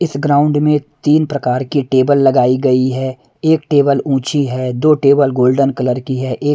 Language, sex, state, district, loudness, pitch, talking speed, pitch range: Hindi, male, Punjab, Pathankot, -14 LUFS, 140 Hz, 190 wpm, 130-145 Hz